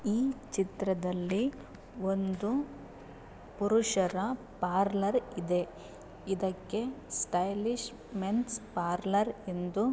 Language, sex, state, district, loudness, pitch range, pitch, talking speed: Kannada, female, Karnataka, Mysore, -33 LUFS, 190-235 Hz, 200 Hz, 70 wpm